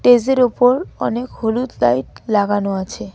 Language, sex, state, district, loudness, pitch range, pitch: Bengali, female, West Bengal, Cooch Behar, -17 LUFS, 200-250 Hz, 235 Hz